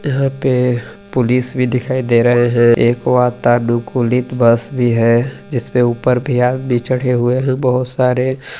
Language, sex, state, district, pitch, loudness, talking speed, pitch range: Hindi, male, Chhattisgarh, Balrampur, 125 Hz, -15 LUFS, 175 wpm, 120-130 Hz